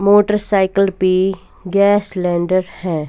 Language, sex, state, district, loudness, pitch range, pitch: Hindi, female, Punjab, Fazilka, -16 LUFS, 185-200 Hz, 190 Hz